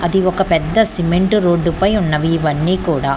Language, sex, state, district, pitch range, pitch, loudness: Telugu, female, Telangana, Hyderabad, 165-190 Hz, 175 Hz, -15 LUFS